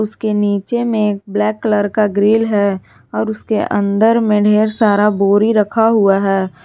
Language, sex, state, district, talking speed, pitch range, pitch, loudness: Hindi, female, Jharkhand, Garhwa, 160 wpm, 200-220 Hz, 210 Hz, -14 LUFS